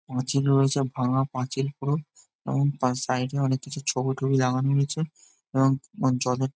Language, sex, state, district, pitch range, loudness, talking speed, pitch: Bengali, male, West Bengal, Jhargram, 130-140 Hz, -26 LUFS, 155 wpm, 135 Hz